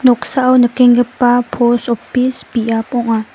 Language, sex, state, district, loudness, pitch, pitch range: Garo, female, Meghalaya, West Garo Hills, -13 LUFS, 245 Hz, 235-250 Hz